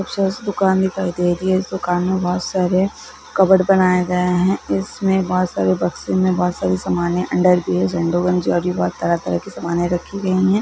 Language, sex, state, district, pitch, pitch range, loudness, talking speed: Maithili, female, Bihar, Begusarai, 180 Hz, 170-190 Hz, -18 LUFS, 200 wpm